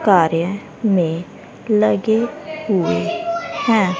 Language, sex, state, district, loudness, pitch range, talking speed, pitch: Hindi, female, Haryana, Rohtak, -19 LUFS, 185-275 Hz, 75 wpm, 215 Hz